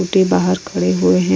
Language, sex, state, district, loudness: Hindi, female, Uttar Pradesh, Hamirpur, -16 LUFS